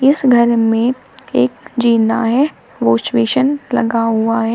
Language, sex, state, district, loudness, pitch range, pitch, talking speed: Hindi, female, Uttar Pradesh, Shamli, -15 LUFS, 225-255 Hz, 230 Hz, 145 wpm